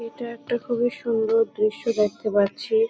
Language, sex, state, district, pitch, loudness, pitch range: Bengali, female, West Bengal, Kolkata, 230 Hz, -24 LUFS, 215-240 Hz